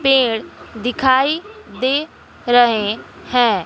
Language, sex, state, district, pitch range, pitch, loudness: Hindi, female, Bihar, West Champaran, 235-275 Hz, 250 Hz, -17 LUFS